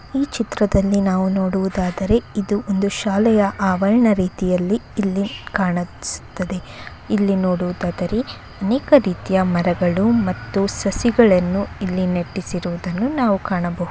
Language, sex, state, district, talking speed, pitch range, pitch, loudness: Kannada, female, Karnataka, Bellary, 90 wpm, 185-210 Hz, 195 Hz, -19 LUFS